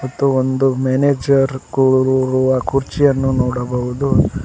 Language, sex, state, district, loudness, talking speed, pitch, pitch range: Kannada, male, Karnataka, Koppal, -16 LUFS, 80 wpm, 130 Hz, 130-135 Hz